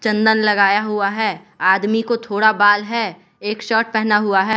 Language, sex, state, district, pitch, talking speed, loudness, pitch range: Hindi, male, Bihar, West Champaran, 210 Hz, 185 wpm, -17 LUFS, 205-220 Hz